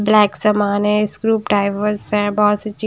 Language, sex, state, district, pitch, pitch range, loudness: Hindi, female, Punjab, Kapurthala, 210 Hz, 205-210 Hz, -17 LUFS